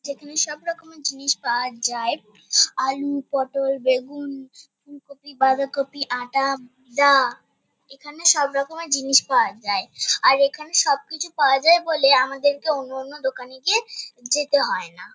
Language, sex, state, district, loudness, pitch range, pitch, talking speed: Bengali, female, West Bengal, Kolkata, -21 LUFS, 265-300 Hz, 275 Hz, 125 wpm